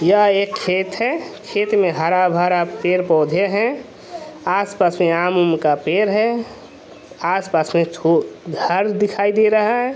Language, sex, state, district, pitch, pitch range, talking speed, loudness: Hindi, male, Bihar, Vaishali, 195 Hz, 175-215 Hz, 140 wpm, -18 LUFS